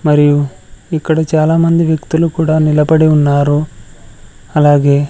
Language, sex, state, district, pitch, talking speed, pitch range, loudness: Telugu, male, Andhra Pradesh, Sri Satya Sai, 155 Hz, 105 wpm, 145-160 Hz, -12 LUFS